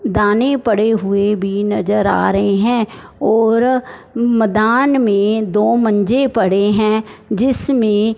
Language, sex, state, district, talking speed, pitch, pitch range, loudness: Hindi, male, Punjab, Fazilka, 115 wpm, 220 Hz, 205-235 Hz, -15 LUFS